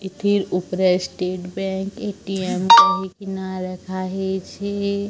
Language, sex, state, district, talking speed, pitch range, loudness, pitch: Odia, female, Odisha, Sambalpur, 95 wpm, 185-200 Hz, -20 LUFS, 190 Hz